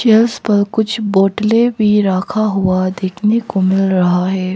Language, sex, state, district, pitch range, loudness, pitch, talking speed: Hindi, female, Arunachal Pradesh, Papum Pare, 190-220 Hz, -14 LUFS, 205 Hz, 160 wpm